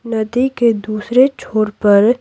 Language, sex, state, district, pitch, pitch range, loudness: Hindi, female, Bihar, Patna, 225 Hz, 215-245 Hz, -15 LUFS